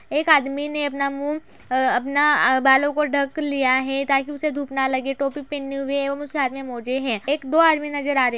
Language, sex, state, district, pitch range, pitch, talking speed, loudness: Hindi, female, Uttar Pradesh, Budaun, 270-290 Hz, 280 Hz, 250 wpm, -21 LUFS